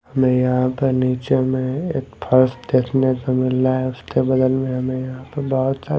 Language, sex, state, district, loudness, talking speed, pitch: Hindi, male, Delhi, New Delhi, -19 LUFS, 180 wpm, 130 Hz